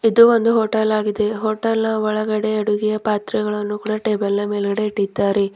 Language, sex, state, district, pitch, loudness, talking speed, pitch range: Kannada, female, Karnataka, Bidar, 215 Hz, -19 LUFS, 140 wpm, 210-220 Hz